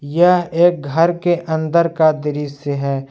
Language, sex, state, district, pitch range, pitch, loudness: Hindi, male, Jharkhand, Palamu, 145-170 Hz, 160 Hz, -16 LUFS